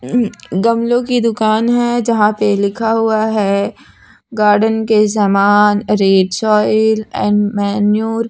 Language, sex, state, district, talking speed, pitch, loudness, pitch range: Hindi, female, Maharashtra, Mumbai Suburban, 125 wpm, 215 Hz, -14 LUFS, 205-225 Hz